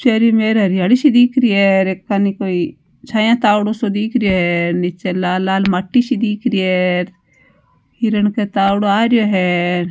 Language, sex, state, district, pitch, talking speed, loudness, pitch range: Marwari, female, Rajasthan, Nagaur, 200 Hz, 145 wpm, -15 LUFS, 180-220 Hz